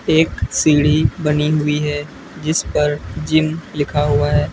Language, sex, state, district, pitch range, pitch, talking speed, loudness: Hindi, female, West Bengal, Alipurduar, 145-155 Hz, 150 Hz, 145 wpm, -17 LUFS